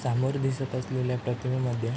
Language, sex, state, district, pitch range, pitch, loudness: Marathi, male, Maharashtra, Chandrapur, 125-130 Hz, 125 Hz, -29 LUFS